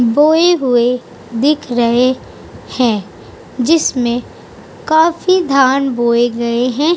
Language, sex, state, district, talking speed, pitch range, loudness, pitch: Hindi, female, Uttar Pradesh, Budaun, 95 wpm, 240-300 Hz, -13 LUFS, 255 Hz